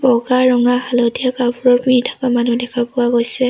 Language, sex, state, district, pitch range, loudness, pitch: Assamese, female, Assam, Sonitpur, 240-255 Hz, -15 LUFS, 245 Hz